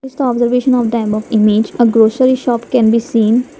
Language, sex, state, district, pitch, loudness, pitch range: English, female, Assam, Kamrup Metropolitan, 235 Hz, -13 LUFS, 225-255 Hz